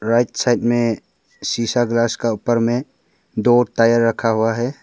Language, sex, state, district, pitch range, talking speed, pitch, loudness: Hindi, male, Arunachal Pradesh, Papum Pare, 115-120 Hz, 160 wpm, 115 Hz, -18 LUFS